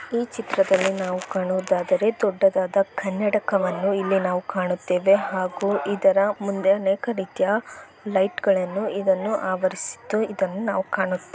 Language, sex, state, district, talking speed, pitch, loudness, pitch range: Kannada, female, Karnataka, Bellary, 105 wpm, 195 Hz, -23 LUFS, 185-205 Hz